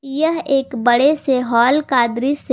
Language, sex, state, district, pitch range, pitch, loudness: Hindi, female, Jharkhand, Garhwa, 245-290 Hz, 270 Hz, -16 LUFS